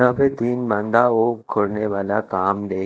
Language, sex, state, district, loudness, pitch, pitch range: Hindi, male, Punjab, Kapurthala, -20 LUFS, 110 Hz, 105-120 Hz